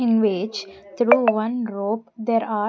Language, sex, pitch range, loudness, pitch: English, female, 205-230 Hz, -21 LUFS, 220 Hz